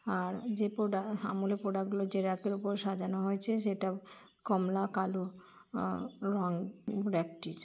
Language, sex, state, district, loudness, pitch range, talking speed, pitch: Bengali, male, West Bengal, Kolkata, -35 LUFS, 190-205 Hz, 165 wpm, 195 Hz